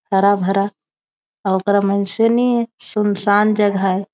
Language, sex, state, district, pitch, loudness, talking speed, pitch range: Chhattisgarhi, female, Chhattisgarh, Raigarh, 200 Hz, -17 LUFS, 115 wpm, 195-210 Hz